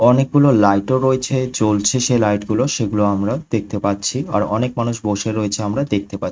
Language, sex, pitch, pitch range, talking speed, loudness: Bengali, male, 110 Hz, 105-130 Hz, 200 wpm, -18 LUFS